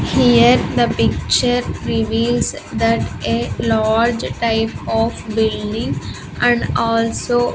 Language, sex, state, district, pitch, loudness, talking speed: English, female, Andhra Pradesh, Sri Satya Sai, 225 Hz, -17 LUFS, 105 wpm